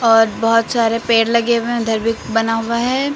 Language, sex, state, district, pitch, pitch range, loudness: Hindi, female, Uttar Pradesh, Lucknow, 230 Hz, 225-235 Hz, -16 LUFS